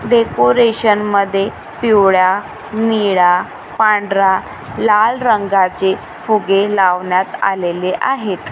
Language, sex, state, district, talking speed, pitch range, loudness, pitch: Marathi, female, Maharashtra, Gondia, 75 wpm, 185-215 Hz, -14 LUFS, 195 Hz